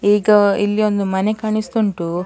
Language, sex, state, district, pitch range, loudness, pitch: Kannada, female, Karnataka, Dakshina Kannada, 200-215 Hz, -17 LUFS, 205 Hz